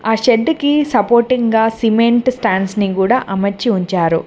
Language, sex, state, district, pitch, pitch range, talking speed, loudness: Telugu, female, Telangana, Mahabubabad, 225 Hz, 195-250 Hz, 155 wpm, -14 LUFS